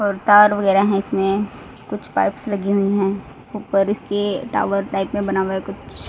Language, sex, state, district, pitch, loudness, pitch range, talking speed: Hindi, female, Haryana, Rohtak, 200 Hz, -19 LUFS, 195-205 Hz, 185 wpm